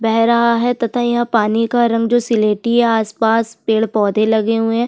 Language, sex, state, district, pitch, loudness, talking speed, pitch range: Hindi, female, Chhattisgarh, Sukma, 230 Hz, -15 LUFS, 245 wpm, 220-235 Hz